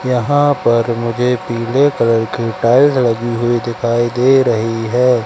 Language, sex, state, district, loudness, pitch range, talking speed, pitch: Hindi, male, Madhya Pradesh, Katni, -14 LUFS, 115-125 Hz, 150 wpm, 120 Hz